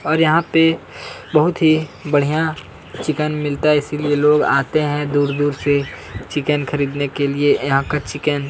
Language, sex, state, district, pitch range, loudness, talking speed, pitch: Hindi, male, Chhattisgarh, Kabirdham, 140-155 Hz, -18 LUFS, 160 wpm, 145 Hz